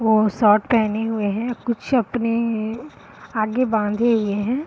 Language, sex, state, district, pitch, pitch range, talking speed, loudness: Hindi, female, Bihar, Madhepura, 225 Hz, 215-235 Hz, 140 wpm, -20 LUFS